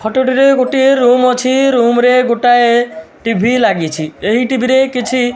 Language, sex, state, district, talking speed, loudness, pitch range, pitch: Odia, male, Odisha, Malkangiri, 170 wpm, -11 LUFS, 230-255 Hz, 245 Hz